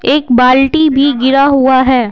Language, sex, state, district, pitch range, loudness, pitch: Hindi, female, Bihar, Patna, 255-280 Hz, -9 LUFS, 265 Hz